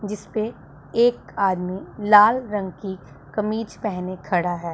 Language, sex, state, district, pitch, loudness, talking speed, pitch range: Hindi, female, Punjab, Pathankot, 200 Hz, -22 LUFS, 140 wpm, 180-215 Hz